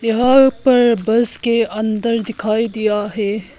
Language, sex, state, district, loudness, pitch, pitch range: Hindi, female, Arunachal Pradesh, Lower Dibang Valley, -16 LUFS, 225 Hz, 215-235 Hz